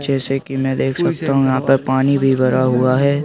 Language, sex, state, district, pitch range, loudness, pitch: Hindi, male, Madhya Pradesh, Bhopal, 130-140 Hz, -16 LUFS, 135 Hz